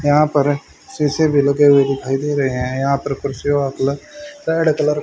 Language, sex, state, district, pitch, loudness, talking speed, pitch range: Hindi, male, Haryana, Rohtak, 145 Hz, -17 LUFS, 205 wpm, 140-150 Hz